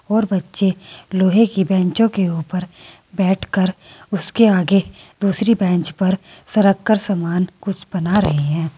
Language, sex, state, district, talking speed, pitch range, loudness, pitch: Hindi, female, Uttar Pradesh, Saharanpur, 145 wpm, 180-200 Hz, -18 LUFS, 190 Hz